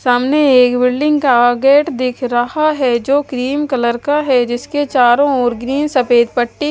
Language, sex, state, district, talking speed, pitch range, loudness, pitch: Hindi, female, Haryana, Charkhi Dadri, 170 wpm, 245-290 Hz, -14 LUFS, 255 Hz